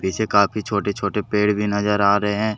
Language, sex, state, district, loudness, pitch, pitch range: Hindi, male, Jharkhand, Deoghar, -20 LUFS, 105 Hz, 100-105 Hz